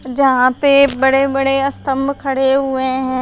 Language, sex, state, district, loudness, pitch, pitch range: Hindi, female, Uttar Pradesh, Shamli, -14 LUFS, 270 Hz, 260-275 Hz